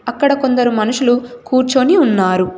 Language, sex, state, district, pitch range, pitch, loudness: Telugu, female, Telangana, Komaram Bheem, 225-265 Hz, 245 Hz, -14 LUFS